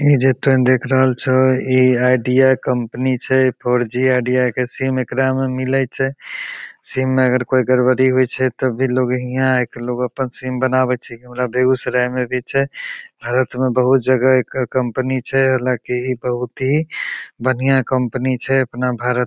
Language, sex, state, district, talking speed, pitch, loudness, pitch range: Maithili, male, Bihar, Begusarai, 175 wpm, 130 Hz, -17 LUFS, 125-130 Hz